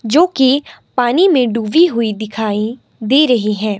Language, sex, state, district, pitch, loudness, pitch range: Hindi, female, Himachal Pradesh, Shimla, 240 Hz, -14 LUFS, 215-275 Hz